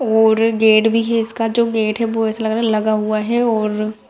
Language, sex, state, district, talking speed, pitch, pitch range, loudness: Hindi, female, Bihar, Madhepura, 265 wpm, 220 Hz, 215-225 Hz, -16 LUFS